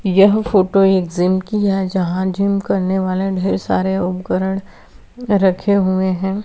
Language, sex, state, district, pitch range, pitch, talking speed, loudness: Hindi, female, Bihar, Vaishali, 185-200 Hz, 190 Hz, 150 wpm, -17 LUFS